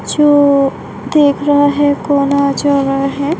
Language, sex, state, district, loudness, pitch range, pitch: Hindi, female, Bihar, Begusarai, -12 LUFS, 280-290 Hz, 285 Hz